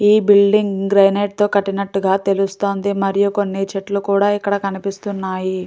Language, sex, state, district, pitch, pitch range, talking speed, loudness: Telugu, female, Andhra Pradesh, Guntur, 200 Hz, 195-205 Hz, 125 wpm, -17 LUFS